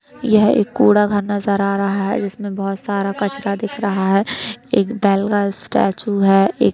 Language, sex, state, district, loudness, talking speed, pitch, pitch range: Hindi, female, Uttar Pradesh, Deoria, -17 LUFS, 185 wpm, 200 Hz, 195-210 Hz